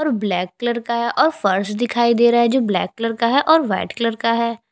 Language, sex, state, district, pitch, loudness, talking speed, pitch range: Hindi, female, Chhattisgarh, Jashpur, 235 Hz, -18 LUFS, 265 wpm, 230-240 Hz